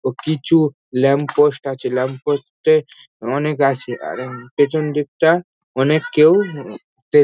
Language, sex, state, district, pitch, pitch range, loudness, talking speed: Bengali, male, West Bengal, North 24 Parganas, 145 Hz, 130-155 Hz, -18 LUFS, 140 wpm